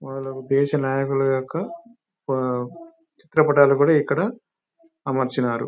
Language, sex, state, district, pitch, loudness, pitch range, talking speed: Telugu, male, Telangana, Nalgonda, 140 Hz, -21 LUFS, 135-190 Hz, 85 wpm